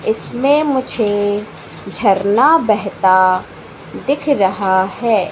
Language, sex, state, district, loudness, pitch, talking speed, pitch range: Hindi, female, Madhya Pradesh, Katni, -15 LUFS, 205 Hz, 80 wpm, 190-250 Hz